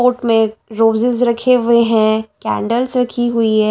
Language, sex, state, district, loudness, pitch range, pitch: Hindi, female, Delhi, New Delhi, -15 LUFS, 220-245 Hz, 230 Hz